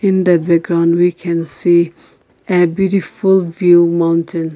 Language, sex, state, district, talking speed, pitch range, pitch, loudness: English, female, Nagaland, Kohima, 130 wpm, 170-180 Hz, 170 Hz, -14 LUFS